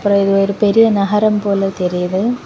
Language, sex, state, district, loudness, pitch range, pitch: Tamil, female, Tamil Nadu, Kanyakumari, -14 LUFS, 195-210 Hz, 200 Hz